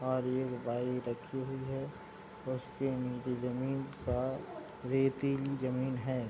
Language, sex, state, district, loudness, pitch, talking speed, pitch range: Hindi, male, Bihar, Madhepura, -36 LUFS, 130 Hz, 125 wpm, 125-135 Hz